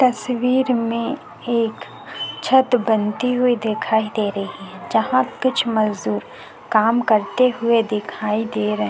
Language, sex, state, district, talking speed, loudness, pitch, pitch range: Hindi, female, Chhattisgarh, Korba, 130 wpm, -20 LUFS, 225 Hz, 210-245 Hz